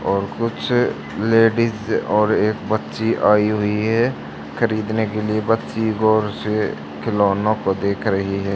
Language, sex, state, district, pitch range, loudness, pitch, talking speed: Hindi, male, Haryana, Charkhi Dadri, 100-110 Hz, -19 LUFS, 110 Hz, 140 wpm